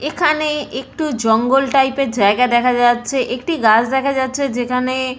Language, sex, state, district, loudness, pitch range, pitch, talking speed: Bengali, female, West Bengal, Paschim Medinipur, -16 LUFS, 245-275 Hz, 260 Hz, 140 wpm